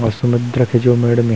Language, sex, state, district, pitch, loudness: Chhattisgarhi, male, Chhattisgarh, Rajnandgaon, 120 Hz, -15 LUFS